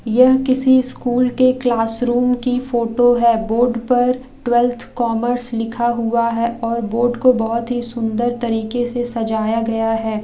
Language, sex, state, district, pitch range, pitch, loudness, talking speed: Hindi, female, Bihar, Gaya, 230-245 Hz, 240 Hz, -17 LUFS, 150 wpm